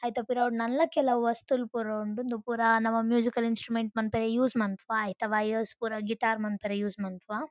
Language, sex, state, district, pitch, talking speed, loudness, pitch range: Tulu, female, Karnataka, Dakshina Kannada, 225 Hz, 175 wpm, -29 LUFS, 215-240 Hz